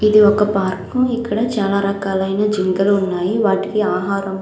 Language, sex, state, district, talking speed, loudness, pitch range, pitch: Telugu, female, Andhra Pradesh, Krishna, 150 wpm, -17 LUFS, 195-210 Hz, 200 Hz